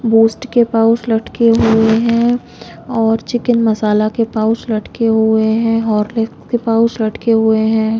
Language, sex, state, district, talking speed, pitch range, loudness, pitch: Hindi, female, Chhattisgarh, Raigarh, 155 wpm, 220-230 Hz, -14 LUFS, 225 Hz